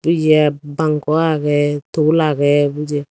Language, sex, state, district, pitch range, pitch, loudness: Chakma, female, Tripura, Dhalai, 145-155 Hz, 150 Hz, -16 LUFS